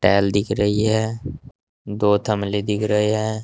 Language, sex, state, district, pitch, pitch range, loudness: Hindi, male, Uttar Pradesh, Saharanpur, 105 Hz, 105-110 Hz, -20 LUFS